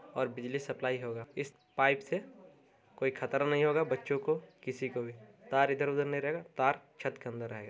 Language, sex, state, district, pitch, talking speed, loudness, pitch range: Hindi, male, Bihar, Darbhanga, 135 Hz, 195 wpm, -34 LUFS, 125-145 Hz